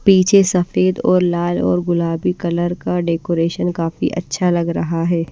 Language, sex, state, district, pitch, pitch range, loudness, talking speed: Hindi, female, Maharashtra, Washim, 175 Hz, 170-180 Hz, -17 LUFS, 160 wpm